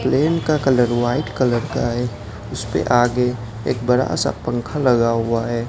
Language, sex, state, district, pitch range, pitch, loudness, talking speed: Hindi, male, Gujarat, Gandhinagar, 115-125 Hz, 120 Hz, -19 LUFS, 170 wpm